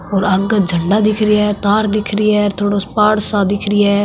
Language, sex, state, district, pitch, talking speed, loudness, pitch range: Marwari, female, Rajasthan, Nagaur, 205 Hz, 250 wpm, -14 LUFS, 200-210 Hz